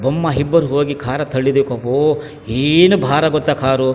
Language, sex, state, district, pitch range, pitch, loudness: Kannada, male, Karnataka, Chamarajanagar, 130-150 Hz, 145 Hz, -15 LUFS